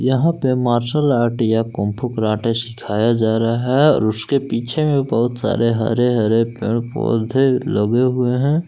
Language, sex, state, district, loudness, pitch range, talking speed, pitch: Hindi, male, Jharkhand, Palamu, -18 LUFS, 115-130 Hz, 180 wpm, 120 Hz